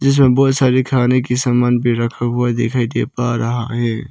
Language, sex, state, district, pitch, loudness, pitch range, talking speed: Hindi, male, Arunachal Pradesh, Lower Dibang Valley, 120 Hz, -16 LUFS, 120-130 Hz, 205 wpm